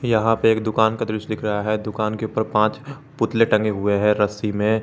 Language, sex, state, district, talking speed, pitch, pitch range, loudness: Hindi, male, Jharkhand, Garhwa, 235 wpm, 110 Hz, 105-110 Hz, -21 LUFS